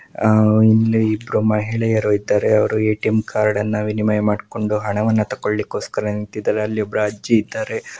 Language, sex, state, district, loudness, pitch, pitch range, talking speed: Kannada, male, Karnataka, Mysore, -18 LUFS, 105 Hz, 105-110 Hz, 120 wpm